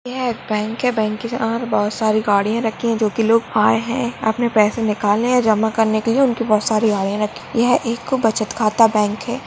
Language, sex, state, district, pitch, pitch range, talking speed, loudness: Hindi, female, Goa, North and South Goa, 225 Hz, 215-235 Hz, 230 wpm, -18 LUFS